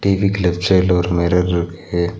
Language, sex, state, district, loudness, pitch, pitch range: Tamil, male, Tamil Nadu, Nilgiris, -17 LUFS, 90 Hz, 85-95 Hz